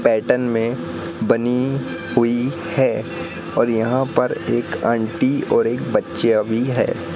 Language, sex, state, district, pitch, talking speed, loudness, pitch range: Hindi, male, Madhya Pradesh, Katni, 125 Hz, 125 wpm, -20 LUFS, 115-135 Hz